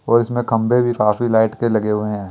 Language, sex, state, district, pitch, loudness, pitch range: Hindi, female, Chandigarh, Chandigarh, 115 Hz, -17 LUFS, 105-120 Hz